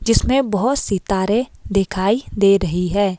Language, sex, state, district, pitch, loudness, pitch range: Hindi, female, Himachal Pradesh, Shimla, 200 Hz, -18 LUFS, 195-230 Hz